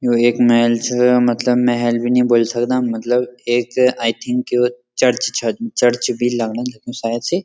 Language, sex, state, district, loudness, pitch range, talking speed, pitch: Garhwali, male, Uttarakhand, Uttarkashi, -17 LUFS, 120-125 Hz, 185 wpm, 120 Hz